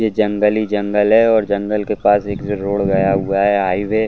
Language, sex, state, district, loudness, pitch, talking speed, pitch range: Hindi, male, Chhattisgarh, Bastar, -16 LUFS, 105 Hz, 250 wpm, 100-105 Hz